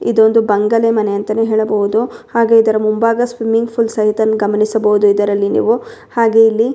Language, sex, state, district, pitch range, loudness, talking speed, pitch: Kannada, female, Karnataka, Bellary, 210-230 Hz, -14 LUFS, 140 wpm, 220 Hz